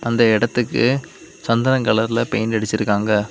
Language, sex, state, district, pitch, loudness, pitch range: Tamil, male, Tamil Nadu, Kanyakumari, 115 Hz, -18 LUFS, 110-120 Hz